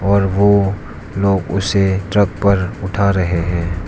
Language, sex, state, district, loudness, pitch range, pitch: Hindi, male, Arunachal Pradesh, Lower Dibang Valley, -16 LUFS, 95-100 Hz, 95 Hz